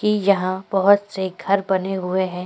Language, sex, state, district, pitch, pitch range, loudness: Hindi, female, Goa, North and South Goa, 190 Hz, 185-200 Hz, -20 LUFS